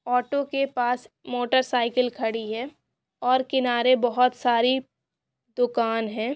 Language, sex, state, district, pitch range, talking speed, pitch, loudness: Maithili, female, Bihar, Supaul, 235-255 Hz, 125 wpm, 245 Hz, -24 LUFS